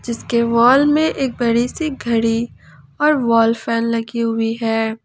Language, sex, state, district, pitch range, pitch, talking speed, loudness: Hindi, female, Jharkhand, Ranchi, 230-260 Hz, 235 Hz, 155 wpm, -17 LUFS